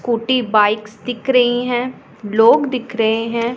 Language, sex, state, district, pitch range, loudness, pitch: Hindi, female, Punjab, Pathankot, 225-250 Hz, -16 LUFS, 235 Hz